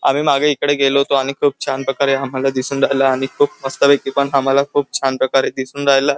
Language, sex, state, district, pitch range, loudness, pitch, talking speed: Marathi, male, Maharashtra, Chandrapur, 135-140 Hz, -16 LUFS, 135 Hz, 215 wpm